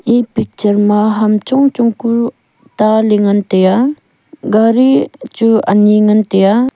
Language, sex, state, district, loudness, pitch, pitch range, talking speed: Wancho, female, Arunachal Pradesh, Longding, -12 LUFS, 215 Hz, 205-235 Hz, 135 wpm